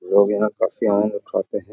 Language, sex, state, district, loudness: Hindi, male, Bihar, Bhagalpur, -20 LUFS